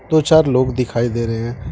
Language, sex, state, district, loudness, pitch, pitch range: Hindi, male, Jharkhand, Deoghar, -16 LUFS, 125 Hz, 115-135 Hz